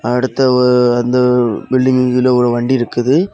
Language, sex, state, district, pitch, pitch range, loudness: Tamil, male, Tamil Nadu, Kanyakumari, 125 Hz, 120-130 Hz, -13 LUFS